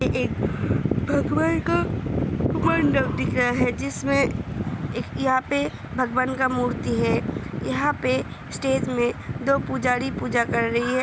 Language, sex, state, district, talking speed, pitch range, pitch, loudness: Hindi, female, Uttar Pradesh, Hamirpur, 130 wpm, 240-260 Hz, 255 Hz, -24 LUFS